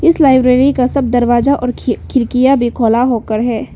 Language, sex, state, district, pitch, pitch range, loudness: Hindi, female, Arunachal Pradesh, Lower Dibang Valley, 250 Hz, 240-270 Hz, -12 LUFS